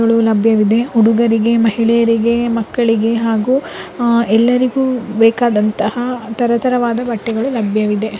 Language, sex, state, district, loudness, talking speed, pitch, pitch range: Kannada, female, Karnataka, Raichur, -14 LUFS, 95 wpm, 230 Hz, 225-240 Hz